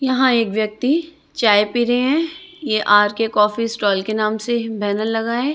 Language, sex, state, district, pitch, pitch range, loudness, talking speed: Hindi, female, Chhattisgarh, Raipur, 230 Hz, 215-260 Hz, -18 LUFS, 185 wpm